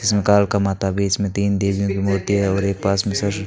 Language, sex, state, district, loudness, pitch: Hindi, male, Rajasthan, Bikaner, -19 LUFS, 100 Hz